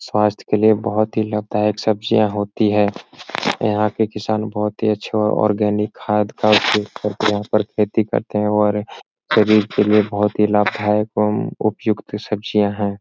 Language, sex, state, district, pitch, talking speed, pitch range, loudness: Hindi, male, Bihar, Jahanabad, 105 Hz, 165 wpm, 105-110 Hz, -18 LUFS